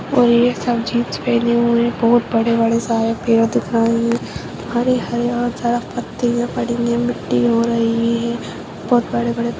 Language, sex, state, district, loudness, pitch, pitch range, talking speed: Hindi, female, Uttarakhand, Tehri Garhwal, -17 LUFS, 235 Hz, 230-240 Hz, 150 wpm